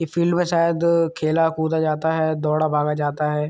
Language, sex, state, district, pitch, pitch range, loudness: Hindi, male, Uttar Pradesh, Muzaffarnagar, 160 Hz, 150-165 Hz, -20 LUFS